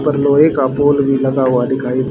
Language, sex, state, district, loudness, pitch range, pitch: Hindi, male, Haryana, Rohtak, -14 LUFS, 130-145 Hz, 135 Hz